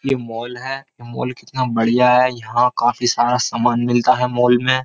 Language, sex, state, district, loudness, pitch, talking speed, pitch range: Hindi, male, Uttar Pradesh, Jyotiba Phule Nagar, -17 LUFS, 125 Hz, 185 wpm, 120-125 Hz